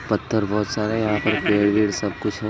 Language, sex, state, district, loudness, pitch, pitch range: Hindi, male, Uttar Pradesh, Muzaffarnagar, -21 LUFS, 105 Hz, 105-110 Hz